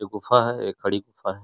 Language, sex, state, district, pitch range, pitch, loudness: Hindi, male, Uttar Pradesh, Etah, 100-120 Hz, 105 Hz, -23 LUFS